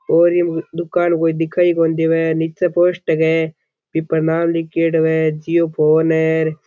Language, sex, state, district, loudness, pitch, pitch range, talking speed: Rajasthani, male, Rajasthan, Churu, -16 LUFS, 165 Hz, 160-170 Hz, 170 wpm